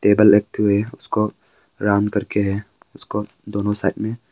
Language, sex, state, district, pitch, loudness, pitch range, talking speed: Hindi, male, Arunachal Pradesh, Longding, 105 Hz, -20 LUFS, 100-105 Hz, 165 wpm